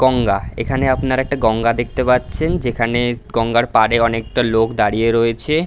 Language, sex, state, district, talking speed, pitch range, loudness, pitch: Bengali, male, West Bengal, Dakshin Dinajpur, 170 wpm, 115-125 Hz, -17 LUFS, 115 Hz